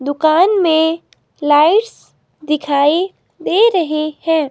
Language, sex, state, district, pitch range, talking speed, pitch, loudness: Hindi, female, Himachal Pradesh, Shimla, 300-360 Hz, 95 wpm, 315 Hz, -14 LUFS